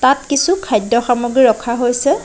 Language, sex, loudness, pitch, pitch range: Assamese, female, -15 LUFS, 245 Hz, 240-270 Hz